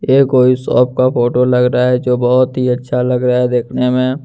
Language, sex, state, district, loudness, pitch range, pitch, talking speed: Hindi, male, Jharkhand, Deoghar, -13 LUFS, 125-130 Hz, 125 Hz, 240 wpm